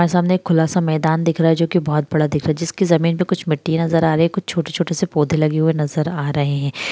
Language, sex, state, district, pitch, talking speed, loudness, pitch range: Hindi, female, Bihar, Madhepura, 165 Hz, 260 wpm, -18 LUFS, 155-170 Hz